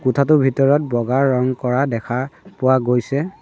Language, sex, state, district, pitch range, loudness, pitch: Assamese, male, Assam, Sonitpur, 125-140 Hz, -18 LUFS, 130 Hz